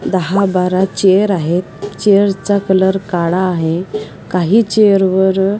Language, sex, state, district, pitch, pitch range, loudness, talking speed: Marathi, female, Maharashtra, Washim, 190 Hz, 180-200 Hz, -13 LUFS, 140 wpm